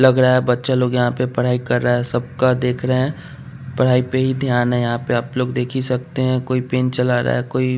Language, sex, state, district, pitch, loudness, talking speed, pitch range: Hindi, male, Bihar, West Champaran, 125 Hz, -18 LUFS, 270 wpm, 125-130 Hz